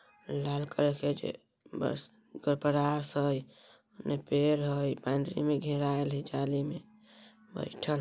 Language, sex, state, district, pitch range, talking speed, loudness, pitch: Bajjika, female, Bihar, Vaishali, 140-150 Hz, 110 wpm, -33 LUFS, 145 Hz